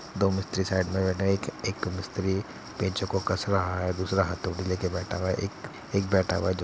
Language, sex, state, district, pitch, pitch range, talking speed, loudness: Hindi, male, Uttar Pradesh, Muzaffarnagar, 95 Hz, 90-95 Hz, 235 wpm, -28 LUFS